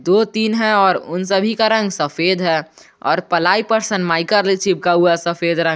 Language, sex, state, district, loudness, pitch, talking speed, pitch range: Hindi, male, Jharkhand, Garhwa, -16 LUFS, 185 Hz, 210 wpm, 170-210 Hz